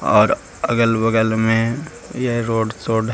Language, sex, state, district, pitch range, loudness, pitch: Hindi, male, Bihar, Gaya, 110-115 Hz, -18 LUFS, 115 Hz